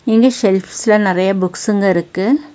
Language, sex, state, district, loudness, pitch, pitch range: Tamil, female, Tamil Nadu, Nilgiris, -14 LUFS, 200 Hz, 190-235 Hz